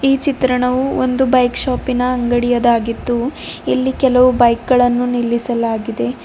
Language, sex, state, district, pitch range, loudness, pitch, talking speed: Kannada, female, Karnataka, Bidar, 240-255 Hz, -15 LUFS, 250 Hz, 105 wpm